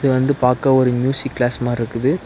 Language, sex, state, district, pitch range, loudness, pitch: Tamil, male, Tamil Nadu, Nilgiris, 120-135 Hz, -17 LUFS, 130 Hz